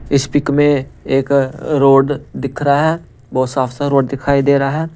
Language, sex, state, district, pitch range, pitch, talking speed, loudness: Hindi, male, Punjab, Pathankot, 135-145 Hz, 140 Hz, 195 wpm, -15 LUFS